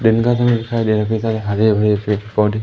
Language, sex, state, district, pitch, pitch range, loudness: Hindi, male, Madhya Pradesh, Umaria, 110 Hz, 105-115 Hz, -17 LUFS